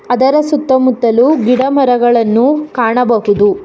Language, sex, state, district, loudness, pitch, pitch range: Kannada, female, Karnataka, Bangalore, -11 LUFS, 250 Hz, 235-275 Hz